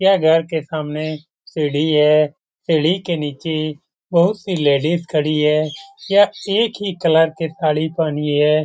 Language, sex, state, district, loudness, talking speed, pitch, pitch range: Hindi, male, Bihar, Lakhisarai, -18 LUFS, 160 wpm, 160 Hz, 150-175 Hz